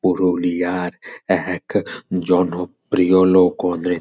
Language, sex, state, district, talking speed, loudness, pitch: Bengali, male, West Bengal, Purulia, 75 wpm, -18 LUFS, 90 Hz